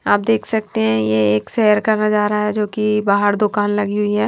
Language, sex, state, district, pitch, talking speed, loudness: Hindi, female, Himachal Pradesh, Shimla, 210 Hz, 240 wpm, -17 LUFS